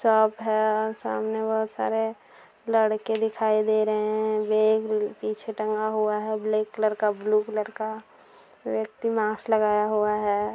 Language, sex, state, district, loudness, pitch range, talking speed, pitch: Bhojpuri, female, Bihar, Saran, -25 LUFS, 215-220 Hz, 155 wpm, 215 Hz